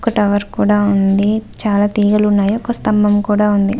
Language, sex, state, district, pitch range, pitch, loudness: Telugu, female, Andhra Pradesh, Visakhapatnam, 205-210 Hz, 205 Hz, -14 LUFS